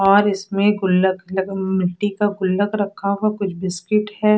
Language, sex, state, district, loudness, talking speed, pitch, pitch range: Hindi, female, Odisha, Sambalpur, -20 LUFS, 165 wpm, 200 Hz, 190-205 Hz